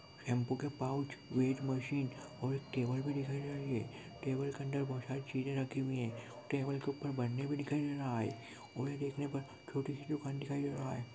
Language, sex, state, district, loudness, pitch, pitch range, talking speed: Hindi, male, Goa, North and South Goa, -39 LUFS, 135 Hz, 130-140 Hz, 210 wpm